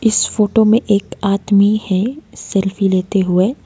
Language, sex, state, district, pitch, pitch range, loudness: Hindi, female, Arunachal Pradesh, Lower Dibang Valley, 205 Hz, 195-220 Hz, -15 LUFS